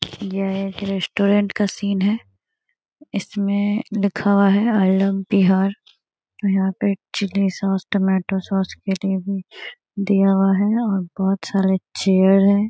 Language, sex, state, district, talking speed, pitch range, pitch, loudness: Hindi, female, Bihar, Gaya, 140 wpm, 195-200 Hz, 195 Hz, -20 LUFS